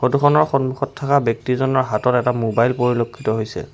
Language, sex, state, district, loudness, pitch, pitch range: Assamese, male, Assam, Sonitpur, -18 LUFS, 125 Hz, 115-135 Hz